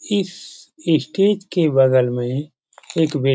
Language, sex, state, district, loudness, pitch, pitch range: Hindi, male, Bihar, Jamui, -19 LUFS, 160 Hz, 135-180 Hz